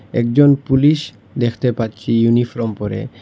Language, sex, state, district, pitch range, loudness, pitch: Bengali, male, Assam, Hailakandi, 115-135 Hz, -16 LUFS, 120 Hz